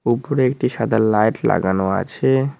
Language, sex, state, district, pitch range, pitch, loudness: Bengali, male, West Bengal, Cooch Behar, 110-135 Hz, 120 Hz, -18 LUFS